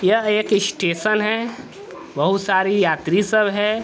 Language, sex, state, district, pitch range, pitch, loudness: Hindi, male, Bihar, Vaishali, 190-215 Hz, 205 Hz, -19 LUFS